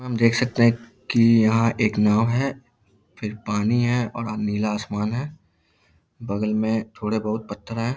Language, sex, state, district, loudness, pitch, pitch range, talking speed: Hindi, male, Bihar, Lakhisarai, -22 LUFS, 110 Hz, 105-120 Hz, 175 wpm